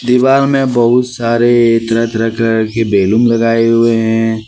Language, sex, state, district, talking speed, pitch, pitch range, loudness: Hindi, male, Jharkhand, Ranchi, 160 wpm, 115 Hz, 115-120 Hz, -11 LUFS